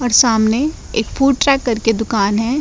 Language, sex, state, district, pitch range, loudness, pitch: Hindi, female, Uttarakhand, Tehri Garhwal, 220-275 Hz, -15 LUFS, 235 Hz